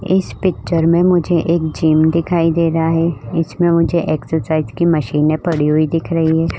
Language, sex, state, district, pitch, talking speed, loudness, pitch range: Hindi, female, Uttar Pradesh, Budaun, 165 Hz, 180 wpm, -15 LUFS, 160-170 Hz